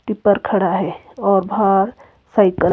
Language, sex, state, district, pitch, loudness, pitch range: Hindi, female, Himachal Pradesh, Shimla, 200 Hz, -17 LUFS, 195-210 Hz